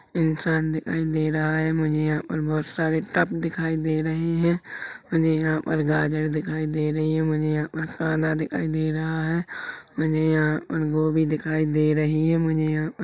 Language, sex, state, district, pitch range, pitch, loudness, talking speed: Hindi, male, Chhattisgarh, Rajnandgaon, 155-160 Hz, 155 Hz, -24 LUFS, 195 wpm